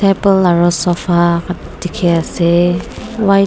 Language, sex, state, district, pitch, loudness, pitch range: Nagamese, female, Nagaland, Dimapur, 175 Hz, -14 LUFS, 175-195 Hz